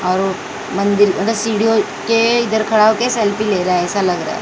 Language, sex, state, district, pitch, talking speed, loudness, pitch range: Hindi, female, Maharashtra, Mumbai Suburban, 215 Hz, 215 wpm, -15 LUFS, 195-225 Hz